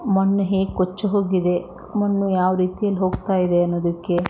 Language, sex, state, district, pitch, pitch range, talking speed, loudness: Kannada, female, Karnataka, Shimoga, 185 Hz, 175-195 Hz, 140 wpm, -21 LUFS